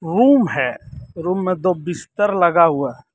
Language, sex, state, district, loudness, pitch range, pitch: Hindi, male, Jharkhand, Deoghar, -17 LUFS, 160-190 Hz, 175 Hz